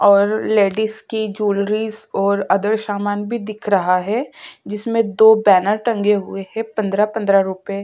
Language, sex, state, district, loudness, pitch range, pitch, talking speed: Hindi, female, Uttarakhand, Tehri Garhwal, -18 LUFS, 200-220 Hz, 210 Hz, 160 wpm